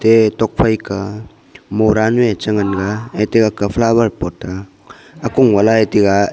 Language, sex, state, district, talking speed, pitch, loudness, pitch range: Wancho, male, Arunachal Pradesh, Longding, 160 wpm, 105 Hz, -15 LUFS, 100-110 Hz